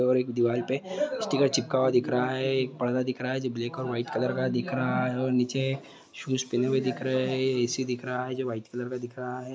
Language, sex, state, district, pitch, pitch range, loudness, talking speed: Hindi, male, Bihar, Jahanabad, 130 Hz, 125-130 Hz, -28 LUFS, 270 wpm